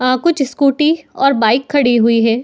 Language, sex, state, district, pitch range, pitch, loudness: Hindi, female, Uttar Pradesh, Muzaffarnagar, 240-285 Hz, 270 Hz, -14 LUFS